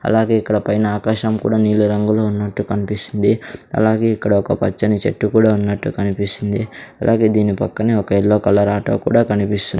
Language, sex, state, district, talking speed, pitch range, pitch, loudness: Telugu, male, Andhra Pradesh, Sri Satya Sai, 160 wpm, 100-110 Hz, 105 Hz, -17 LUFS